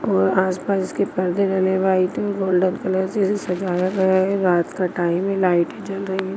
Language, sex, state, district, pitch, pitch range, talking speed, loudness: Hindi, female, Chhattisgarh, Bastar, 190 Hz, 180-195 Hz, 200 wpm, -20 LUFS